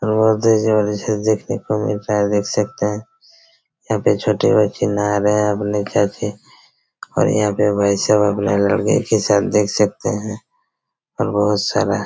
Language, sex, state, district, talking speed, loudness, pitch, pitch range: Hindi, male, Chhattisgarh, Raigarh, 175 wpm, -18 LUFS, 105 Hz, 105-110 Hz